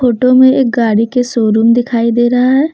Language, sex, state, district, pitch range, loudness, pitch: Hindi, female, Jharkhand, Deoghar, 230-255 Hz, -11 LUFS, 245 Hz